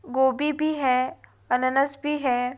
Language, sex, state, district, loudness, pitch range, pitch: Hindi, female, Rajasthan, Nagaur, -24 LUFS, 255-295 Hz, 265 Hz